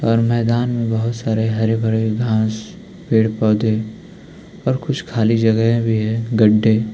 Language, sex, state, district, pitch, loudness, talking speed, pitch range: Hindi, male, Uttarakhand, Tehri Garhwal, 110 Hz, -17 LUFS, 145 wpm, 110-115 Hz